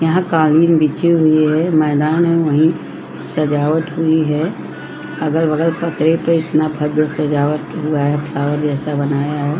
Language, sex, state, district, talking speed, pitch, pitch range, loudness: Hindi, female, Maharashtra, Chandrapur, 130 wpm, 155 Hz, 150-160 Hz, -16 LUFS